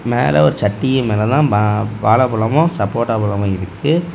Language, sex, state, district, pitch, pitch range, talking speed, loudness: Tamil, male, Tamil Nadu, Kanyakumari, 110 Hz, 105-130 Hz, 130 wpm, -16 LUFS